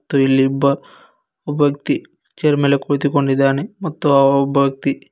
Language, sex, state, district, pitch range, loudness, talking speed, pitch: Kannada, male, Karnataka, Koppal, 135-145 Hz, -17 LUFS, 140 wpm, 140 Hz